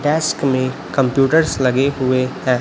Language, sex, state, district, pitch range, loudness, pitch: Hindi, male, Chhattisgarh, Raipur, 130-145 Hz, -17 LUFS, 135 Hz